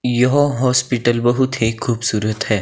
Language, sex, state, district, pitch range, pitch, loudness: Hindi, male, Himachal Pradesh, Shimla, 115-125 Hz, 120 Hz, -17 LUFS